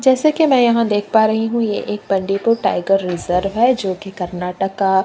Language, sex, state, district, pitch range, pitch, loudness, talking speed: Hindi, female, Chhattisgarh, Kabirdham, 190-230 Hz, 205 Hz, -17 LUFS, 225 wpm